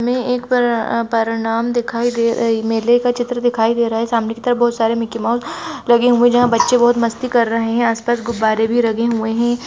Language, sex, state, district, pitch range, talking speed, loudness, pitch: Hindi, female, Jharkhand, Sahebganj, 230-240 Hz, 230 wpm, -16 LUFS, 235 Hz